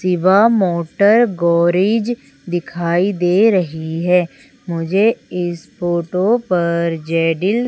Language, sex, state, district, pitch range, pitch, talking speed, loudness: Hindi, female, Madhya Pradesh, Umaria, 170-205 Hz, 180 Hz, 95 wpm, -16 LUFS